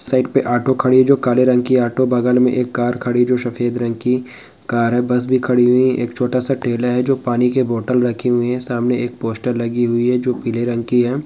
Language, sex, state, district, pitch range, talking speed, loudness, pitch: Hindi, male, Bihar, Jamui, 120-125 Hz, 260 wpm, -17 LUFS, 125 Hz